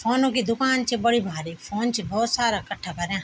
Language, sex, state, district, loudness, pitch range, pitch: Garhwali, female, Uttarakhand, Tehri Garhwal, -24 LUFS, 195-240 Hz, 230 Hz